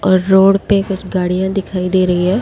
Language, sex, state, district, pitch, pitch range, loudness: Hindi, female, Delhi, New Delhi, 190 Hz, 185-195 Hz, -14 LUFS